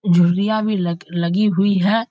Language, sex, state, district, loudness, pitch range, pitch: Hindi, male, Bihar, Muzaffarpur, -18 LUFS, 175-210 Hz, 195 Hz